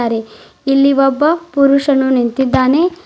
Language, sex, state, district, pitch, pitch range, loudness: Kannada, female, Karnataka, Bidar, 275 Hz, 260-290 Hz, -13 LUFS